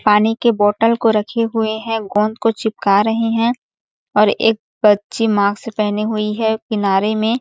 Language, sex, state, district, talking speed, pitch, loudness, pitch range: Hindi, female, Chhattisgarh, Sarguja, 170 wpm, 220 Hz, -17 LUFS, 210-225 Hz